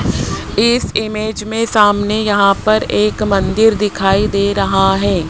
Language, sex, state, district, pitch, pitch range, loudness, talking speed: Hindi, male, Rajasthan, Jaipur, 210 Hz, 195-215 Hz, -14 LUFS, 135 wpm